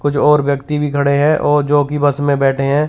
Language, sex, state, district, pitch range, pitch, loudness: Hindi, male, Chandigarh, Chandigarh, 140-150 Hz, 145 Hz, -14 LUFS